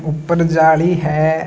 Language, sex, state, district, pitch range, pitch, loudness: Marwari, male, Rajasthan, Nagaur, 155-170 Hz, 160 Hz, -14 LUFS